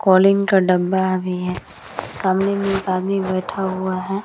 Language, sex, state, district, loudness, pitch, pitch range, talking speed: Hindi, female, Uttar Pradesh, Hamirpur, -19 LUFS, 190 Hz, 185-195 Hz, 170 wpm